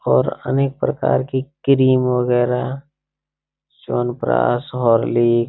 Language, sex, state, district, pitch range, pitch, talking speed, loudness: Hindi, male, Bihar, Saran, 120-135 Hz, 125 Hz, 100 wpm, -18 LUFS